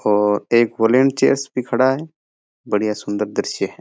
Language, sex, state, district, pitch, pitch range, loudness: Rajasthani, male, Rajasthan, Churu, 120 Hz, 105-135 Hz, -18 LUFS